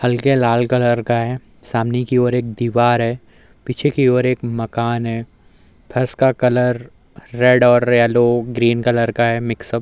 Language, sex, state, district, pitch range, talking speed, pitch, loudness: Hindi, male, Uttar Pradesh, Muzaffarnagar, 115-125 Hz, 175 wpm, 120 Hz, -17 LUFS